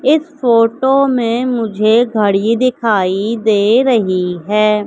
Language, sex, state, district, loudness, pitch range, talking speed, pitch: Hindi, female, Madhya Pradesh, Katni, -13 LUFS, 210-250 Hz, 110 wpm, 225 Hz